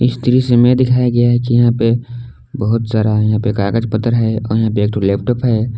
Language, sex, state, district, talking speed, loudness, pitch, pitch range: Hindi, male, Jharkhand, Palamu, 230 wpm, -14 LUFS, 115 Hz, 110-120 Hz